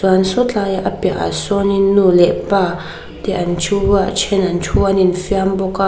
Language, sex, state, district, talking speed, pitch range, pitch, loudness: Mizo, female, Mizoram, Aizawl, 215 wpm, 185-200 Hz, 190 Hz, -15 LUFS